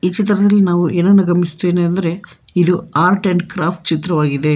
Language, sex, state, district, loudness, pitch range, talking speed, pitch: Kannada, male, Karnataka, Bangalore, -15 LUFS, 170-185 Hz, 130 wpm, 175 Hz